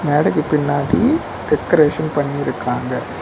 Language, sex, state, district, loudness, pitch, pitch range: Tamil, male, Tamil Nadu, Nilgiris, -18 LUFS, 145 Hz, 145-155 Hz